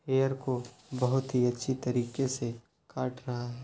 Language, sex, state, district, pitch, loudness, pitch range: Hindi, male, Uttar Pradesh, Jyotiba Phule Nagar, 125 Hz, -32 LUFS, 120-130 Hz